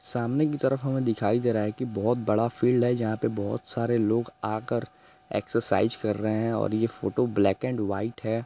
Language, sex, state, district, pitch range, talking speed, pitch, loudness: Hindi, male, Bihar, Gopalganj, 110-120 Hz, 220 wpm, 115 Hz, -27 LUFS